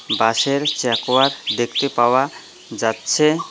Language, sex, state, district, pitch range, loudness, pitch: Bengali, male, West Bengal, Cooch Behar, 120-140 Hz, -18 LUFS, 130 Hz